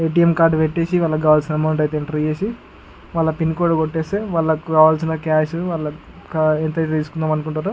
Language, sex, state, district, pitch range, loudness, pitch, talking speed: Telugu, male, Andhra Pradesh, Guntur, 155-165 Hz, -19 LUFS, 160 Hz, 185 wpm